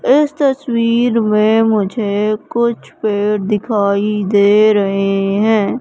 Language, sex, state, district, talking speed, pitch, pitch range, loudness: Hindi, female, Madhya Pradesh, Katni, 105 wpm, 215 Hz, 205-230 Hz, -14 LUFS